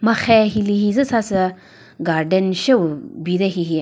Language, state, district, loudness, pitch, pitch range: Chakhesang, Nagaland, Dimapur, -18 LUFS, 190 Hz, 175-220 Hz